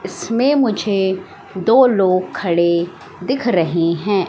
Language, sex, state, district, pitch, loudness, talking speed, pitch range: Hindi, female, Madhya Pradesh, Katni, 190 Hz, -17 LUFS, 110 wpm, 175-235 Hz